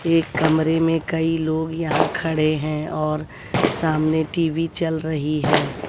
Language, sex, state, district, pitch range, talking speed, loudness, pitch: Hindi, female, Bihar, West Champaran, 155-165 Hz, 145 wpm, -21 LUFS, 160 Hz